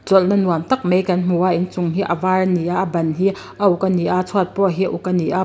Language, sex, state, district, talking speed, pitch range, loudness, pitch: Mizo, female, Mizoram, Aizawl, 330 wpm, 175-190 Hz, -18 LUFS, 185 Hz